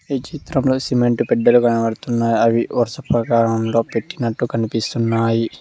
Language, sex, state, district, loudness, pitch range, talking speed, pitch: Telugu, male, Telangana, Mahabubabad, -18 LUFS, 115-120 Hz, 105 wpm, 115 Hz